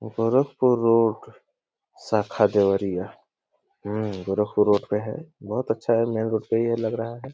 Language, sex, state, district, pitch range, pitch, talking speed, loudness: Hindi, male, Uttar Pradesh, Deoria, 105-115 Hz, 110 Hz, 165 wpm, -23 LUFS